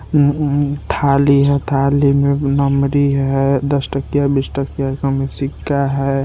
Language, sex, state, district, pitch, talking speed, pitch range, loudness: Hindi, male, Bihar, Muzaffarpur, 140 Hz, 155 wpm, 135-140 Hz, -16 LUFS